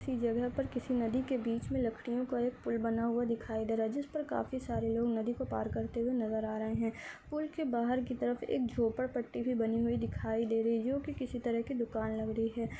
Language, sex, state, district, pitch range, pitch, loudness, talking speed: Hindi, female, Bihar, Samastipur, 225-255 Hz, 235 Hz, -35 LUFS, 255 wpm